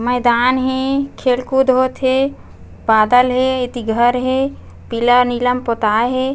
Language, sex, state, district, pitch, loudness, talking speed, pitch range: Chhattisgarhi, female, Chhattisgarh, Bastar, 250 Hz, -16 LUFS, 150 wpm, 240-260 Hz